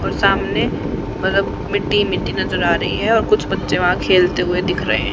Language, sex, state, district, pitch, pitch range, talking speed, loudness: Hindi, female, Haryana, Rohtak, 180 Hz, 180-185 Hz, 210 wpm, -17 LUFS